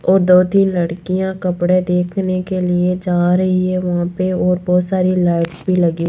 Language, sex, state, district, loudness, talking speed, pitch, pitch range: Hindi, female, Rajasthan, Jaipur, -16 LUFS, 185 wpm, 180 Hz, 175-185 Hz